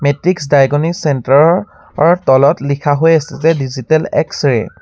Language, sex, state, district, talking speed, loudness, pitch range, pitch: Assamese, male, Assam, Sonitpur, 160 wpm, -13 LUFS, 140-165 Hz, 145 Hz